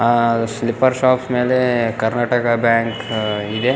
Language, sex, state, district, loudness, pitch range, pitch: Kannada, male, Karnataka, Bellary, -17 LUFS, 115-125 Hz, 120 Hz